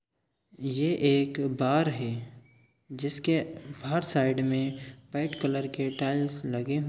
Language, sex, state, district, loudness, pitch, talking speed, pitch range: Hindi, male, Chhattisgarh, Sukma, -29 LUFS, 135 Hz, 115 wpm, 130-145 Hz